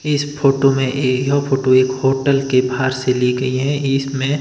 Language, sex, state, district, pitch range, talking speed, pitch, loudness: Hindi, male, Himachal Pradesh, Shimla, 130-140 Hz, 205 wpm, 135 Hz, -17 LUFS